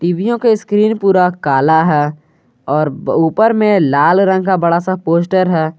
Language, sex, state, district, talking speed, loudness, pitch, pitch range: Hindi, male, Jharkhand, Garhwa, 165 wpm, -13 LUFS, 175 Hz, 155-195 Hz